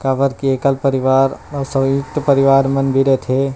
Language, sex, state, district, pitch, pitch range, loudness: Chhattisgarhi, male, Chhattisgarh, Rajnandgaon, 135 Hz, 135-140 Hz, -16 LUFS